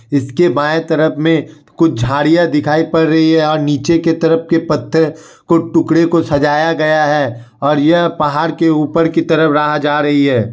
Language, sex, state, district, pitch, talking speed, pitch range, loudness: Hindi, male, Bihar, Kishanganj, 155 Hz, 190 wpm, 150-165 Hz, -13 LUFS